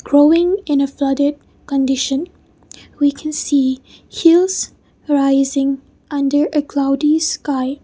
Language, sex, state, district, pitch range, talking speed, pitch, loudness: English, female, Mizoram, Aizawl, 275-305 Hz, 105 wpm, 285 Hz, -16 LUFS